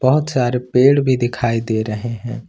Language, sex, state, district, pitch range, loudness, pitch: Hindi, male, Jharkhand, Ranchi, 115-130 Hz, -17 LUFS, 125 Hz